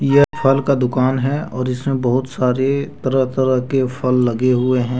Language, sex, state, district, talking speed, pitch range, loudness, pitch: Hindi, male, Jharkhand, Deoghar, 190 wpm, 125-135 Hz, -17 LUFS, 130 Hz